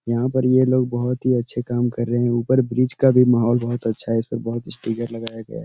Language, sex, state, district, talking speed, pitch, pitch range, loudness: Hindi, male, Uttar Pradesh, Etah, 275 wpm, 120 Hz, 115-125 Hz, -20 LUFS